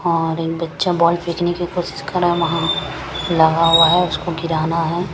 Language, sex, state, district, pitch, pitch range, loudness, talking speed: Hindi, female, Punjab, Kapurthala, 170 Hz, 165-175 Hz, -17 LUFS, 200 wpm